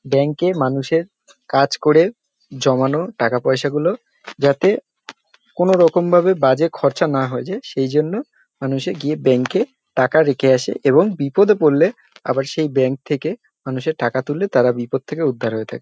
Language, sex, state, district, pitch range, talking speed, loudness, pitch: Bengali, male, West Bengal, North 24 Parganas, 130-175 Hz, 160 wpm, -18 LUFS, 145 Hz